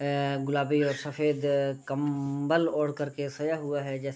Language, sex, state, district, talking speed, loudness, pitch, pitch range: Hindi, male, Bihar, Gopalganj, 175 wpm, -29 LUFS, 145 Hz, 140-150 Hz